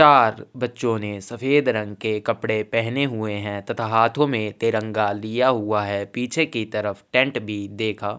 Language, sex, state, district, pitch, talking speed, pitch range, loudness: Hindi, male, Chhattisgarh, Sukma, 110 Hz, 175 wpm, 105-120 Hz, -22 LUFS